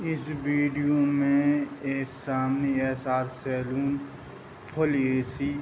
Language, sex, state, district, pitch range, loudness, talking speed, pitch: Hindi, male, Bihar, Sitamarhi, 130-145 Hz, -27 LUFS, 95 wpm, 140 Hz